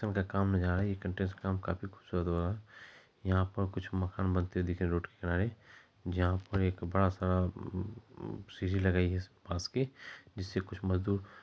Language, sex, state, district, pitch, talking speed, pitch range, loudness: Maithili, male, Bihar, Supaul, 95 Hz, 145 wpm, 90-100 Hz, -35 LUFS